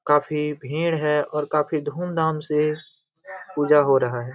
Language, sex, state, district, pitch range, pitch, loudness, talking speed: Hindi, male, Jharkhand, Jamtara, 145-155 Hz, 150 Hz, -22 LUFS, 150 wpm